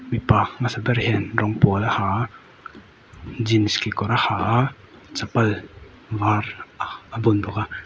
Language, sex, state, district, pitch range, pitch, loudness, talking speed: Mizo, male, Mizoram, Aizawl, 105-115 Hz, 110 Hz, -22 LUFS, 155 wpm